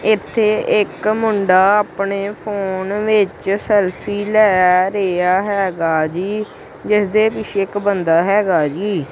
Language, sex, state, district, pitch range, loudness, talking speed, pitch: Punjabi, male, Punjab, Kapurthala, 185-210 Hz, -16 LUFS, 120 wpm, 200 Hz